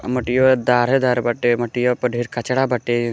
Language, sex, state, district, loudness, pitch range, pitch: Bhojpuri, male, Uttar Pradesh, Gorakhpur, -18 LUFS, 120-125 Hz, 125 Hz